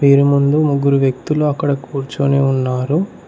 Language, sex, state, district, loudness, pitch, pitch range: Telugu, male, Telangana, Mahabubabad, -16 LUFS, 140 Hz, 135-145 Hz